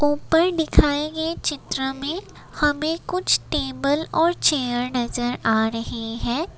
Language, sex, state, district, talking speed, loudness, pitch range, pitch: Hindi, female, Assam, Kamrup Metropolitan, 125 wpm, -22 LUFS, 245-320 Hz, 290 Hz